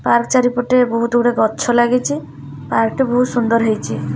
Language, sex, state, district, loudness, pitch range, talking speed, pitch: Odia, female, Odisha, Khordha, -16 LUFS, 225-250 Hz, 160 wpm, 240 Hz